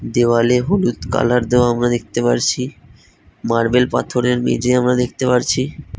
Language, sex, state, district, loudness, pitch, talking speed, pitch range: Bengali, male, West Bengal, North 24 Parganas, -17 LUFS, 120 Hz, 130 wpm, 115-125 Hz